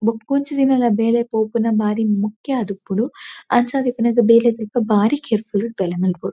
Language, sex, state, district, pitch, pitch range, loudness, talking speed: Tulu, female, Karnataka, Dakshina Kannada, 230 Hz, 210-245 Hz, -18 LUFS, 150 wpm